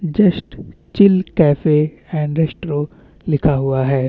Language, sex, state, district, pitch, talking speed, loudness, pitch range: Hindi, male, Chhattisgarh, Bastar, 155 Hz, 115 wpm, -16 LUFS, 145-175 Hz